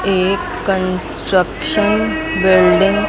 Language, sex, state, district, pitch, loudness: Hindi, female, Chandigarh, Chandigarh, 185 Hz, -15 LUFS